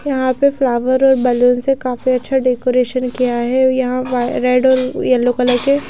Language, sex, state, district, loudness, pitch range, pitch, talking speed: Hindi, female, Odisha, Nuapada, -15 LUFS, 250-260 Hz, 255 Hz, 185 wpm